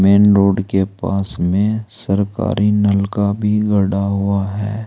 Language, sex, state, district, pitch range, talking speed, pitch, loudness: Hindi, male, Uttar Pradesh, Saharanpur, 100-105 Hz, 135 wpm, 100 Hz, -16 LUFS